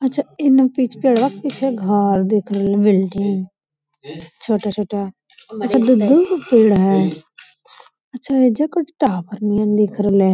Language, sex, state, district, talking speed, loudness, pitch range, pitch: Magahi, female, Bihar, Lakhisarai, 135 wpm, -17 LUFS, 195-260 Hz, 210 Hz